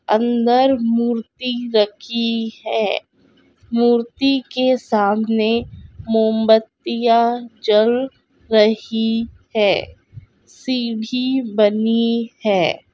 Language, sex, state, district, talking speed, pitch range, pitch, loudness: Hindi, female, Bihar, Purnia, 65 wpm, 220-240 Hz, 230 Hz, -18 LUFS